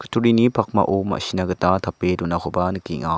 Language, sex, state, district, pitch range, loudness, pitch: Garo, male, Meghalaya, South Garo Hills, 90-105 Hz, -21 LUFS, 95 Hz